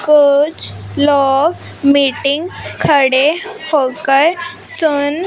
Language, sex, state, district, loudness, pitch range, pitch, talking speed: Hindi, female, Punjab, Fazilka, -13 LUFS, 280-320 Hz, 290 Hz, 70 wpm